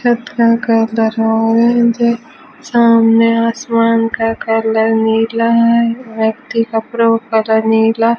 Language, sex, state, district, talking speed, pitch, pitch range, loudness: Hindi, female, Rajasthan, Bikaner, 90 wpm, 230 Hz, 225-235 Hz, -13 LUFS